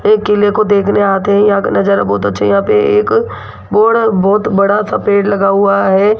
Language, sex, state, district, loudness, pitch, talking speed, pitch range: Hindi, female, Rajasthan, Jaipur, -11 LUFS, 205 Hz, 225 wpm, 195-215 Hz